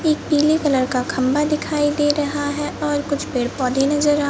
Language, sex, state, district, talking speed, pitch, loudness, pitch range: Hindi, male, Madhya Pradesh, Bhopal, 210 wpm, 290 Hz, -19 LUFS, 270-295 Hz